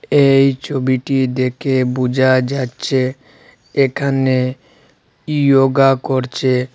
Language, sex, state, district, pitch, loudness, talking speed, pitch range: Bengali, male, Assam, Hailakandi, 130 Hz, -16 LUFS, 70 wpm, 130-135 Hz